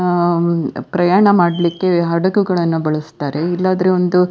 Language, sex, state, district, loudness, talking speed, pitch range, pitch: Kannada, female, Karnataka, Dakshina Kannada, -15 LUFS, 140 wpm, 165-185 Hz, 175 Hz